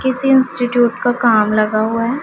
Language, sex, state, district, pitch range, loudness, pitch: Hindi, female, Punjab, Pathankot, 220-255 Hz, -15 LUFS, 245 Hz